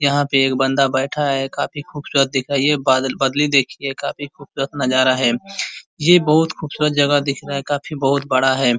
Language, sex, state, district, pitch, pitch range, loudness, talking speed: Hindi, male, Uttar Pradesh, Ghazipur, 140 Hz, 135-145 Hz, -18 LUFS, 205 wpm